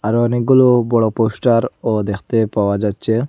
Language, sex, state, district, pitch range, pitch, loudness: Bengali, male, Assam, Hailakandi, 105-120 Hz, 115 Hz, -16 LUFS